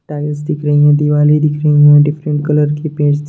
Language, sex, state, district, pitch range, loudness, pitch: Hindi, male, Bihar, Darbhanga, 145-150 Hz, -12 LUFS, 150 Hz